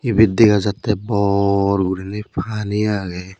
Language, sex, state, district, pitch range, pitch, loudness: Chakma, male, Tripura, West Tripura, 100-110 Hz, 100 Hz, -18 LUFS